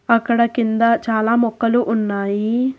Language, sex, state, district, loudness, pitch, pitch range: Telugu, female, Telangana, Hyderabad, -18 LUFS, 230 Hz, 220-235 Hz